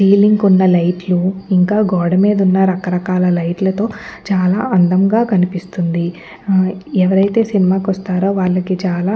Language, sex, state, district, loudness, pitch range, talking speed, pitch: Telugu, female, Andhra Pradesh, Guntur, -15 LUFS, 180-195 Hz, 130 wpm, 185 Hz